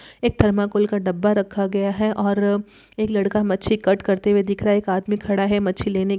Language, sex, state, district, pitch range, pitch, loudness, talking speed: Hindi, female, Bihar, Araria, 195-210 Hz, 205 Hz, -20 LUFS, 220 wpm